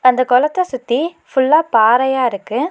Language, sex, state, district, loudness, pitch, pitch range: Tamil, female, Tamil Nadu, Nilgiris, -15 LUFS, 260 Hz, 250-305 Hz